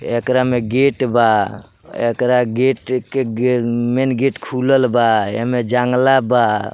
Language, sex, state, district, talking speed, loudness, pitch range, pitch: Bhojpuri, male, Bihar, Muzaffarpur, 150 wpm, -16 LUFS, 120-130 Hz, 125 Hz